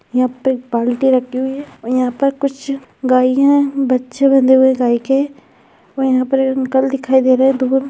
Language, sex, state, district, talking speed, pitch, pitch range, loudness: Hindi, female, Bihar, Jahanabad, 190 wpm, 265 Hz, 255-270 Hz, -15 LUFS